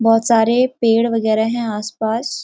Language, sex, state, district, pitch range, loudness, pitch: Hindi, female, Uttarakhand, Uttarkashi, 220-235 Hz, -17 LUFS, 225 Hz